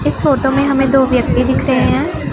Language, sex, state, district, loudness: Hindi, female, Punjab, Pathankot, -13 LUFS